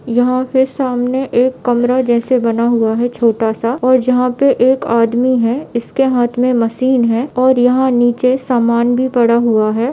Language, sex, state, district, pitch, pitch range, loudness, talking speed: Hindi, female, Bihar, East Champaran, 245 Hz, 235-255 Hz, -14 LUFS, 180 wpm